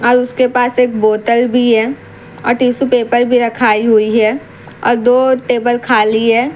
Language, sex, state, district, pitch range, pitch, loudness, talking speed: Hindi, female, Bihar, Katihar, 230-250 Hz, 240 Hz, -12 LUFS, 175 wpm